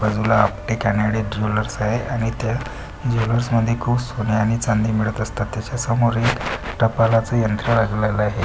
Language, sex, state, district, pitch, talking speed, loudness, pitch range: Marathi, male, Maharashtra, Pune, 115 Hz, 150 wpm, -20 LUFS, 105-115 Hz